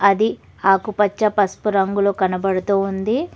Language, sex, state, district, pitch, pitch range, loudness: Telugu, female, Telangana, Hyderabad, 200 Hz, 195-210 Hz, -19 LUFS